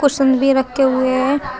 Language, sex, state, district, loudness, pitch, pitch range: Hindi, female, Uttar Pradesh, Shamli, -15 LUFS, 265 Hz, 260-275 Hz